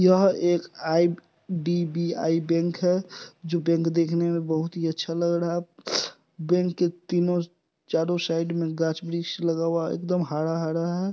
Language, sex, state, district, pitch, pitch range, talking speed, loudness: Hindi, male, Bihar, Supaul, 170 Hz, 165-175 Hz, 145 wpm, -25 LUFS